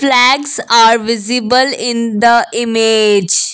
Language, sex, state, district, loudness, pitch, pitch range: English, female, Assam, Kamrup Metropolitan, -11 LUFS, 235 Hz, 225-245 Hz